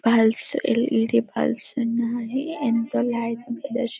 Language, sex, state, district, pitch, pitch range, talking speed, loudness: Telugu, female, Telangana, Karimnagar, 235 Hz, 230-250 Hz, 90 wpm, -24 LUFS